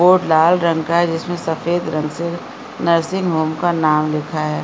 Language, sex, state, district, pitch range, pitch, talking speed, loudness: Hindi, female, Bihar, Araria, 155-175 Hz, 165 Hz, 180 wpm, -17 LUFS